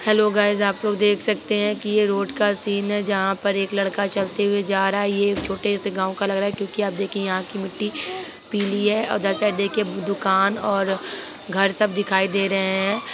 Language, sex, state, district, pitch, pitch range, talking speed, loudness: Hindi, female, Bihar, Begusarai, 200 Hz, 195-210 Hz, 235 wpm, -22 LUFS